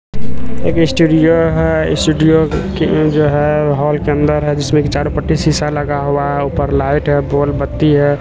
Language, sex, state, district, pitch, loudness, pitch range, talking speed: Hindi, male, Bihar, Katihar, 150 Hz, -13 LUFS, 145-155 Hz, 185 wpm